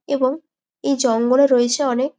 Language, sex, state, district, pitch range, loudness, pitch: Bengali, female, West Bengal, Jalpaiguri, 250-280 Hz, -18 LUFS, 265 Hz